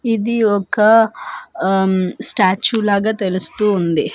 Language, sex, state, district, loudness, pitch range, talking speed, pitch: Telugu, female, Andhra Pradesh, Manyam, -16 LUFS, 190-225 Hz, 100 wpm, 210 Hz